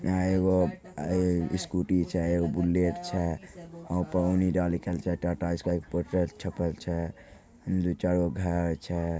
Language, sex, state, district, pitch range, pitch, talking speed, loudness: Maithili, male, Bihar, Begusarai, 85-90 Hz, 90 Hz, 155 wpm, -29 LUFS